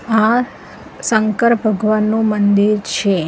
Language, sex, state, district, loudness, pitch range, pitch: Gujarati, female, Gujarat, Valsad, -15 LUFS, 210-225 Hz, 215 Hz